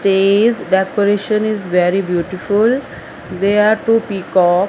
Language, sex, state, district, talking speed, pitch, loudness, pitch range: English, female, Punjab, Fazilka, 115 wpm, 200 Hz, -15 LUFS, 185-215 Hz